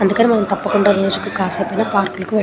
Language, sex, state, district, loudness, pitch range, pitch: Telugu, female, Telangana, Nalgonda, -17 LUFS, 195-210 Hz, 200 Hz